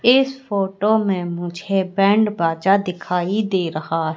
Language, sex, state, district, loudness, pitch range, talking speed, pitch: Hindi, female, Madhya Pradesh, Katni, -19 LUFS, 175-205 Hz, 130 wpm, 195 Hz